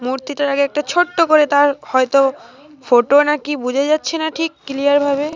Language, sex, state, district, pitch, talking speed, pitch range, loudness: Bengali, female, Jharkhand, Jamtara, 285 Hz, 170 wpm, 275-300 Hz, -16 LUFS